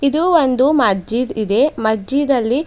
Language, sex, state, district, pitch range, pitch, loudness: Kannada, female, Karnataka, Bidar, 220-285 Hz, 265 Hz, -15 LUFS